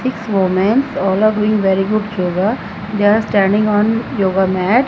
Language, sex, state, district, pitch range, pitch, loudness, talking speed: English, female, Punjab, Fazilka, 190-215 Hz, 205 Hz, -15 LUFS, 170 wpm